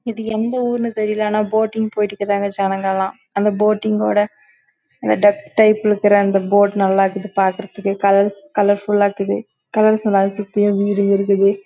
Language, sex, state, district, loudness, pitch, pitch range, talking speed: Tamil, female, Karnataka, Chamarajanagar, -17 LUFS, 205 Hz, 195-215 Hz, 80 wpm